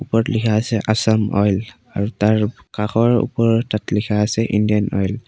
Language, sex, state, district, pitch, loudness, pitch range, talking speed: Assamese, male, Assam, Kamrup Metropolitan, 110 Hz, -18 LUFS, 105-115 Hz, 170 wpm